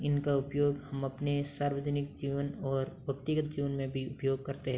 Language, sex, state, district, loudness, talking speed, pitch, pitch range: Hindi, male, Uttar Pradesh, Hamirpur, -34 LUFS, 175 wpm, 140 Hz, 135-145 Hz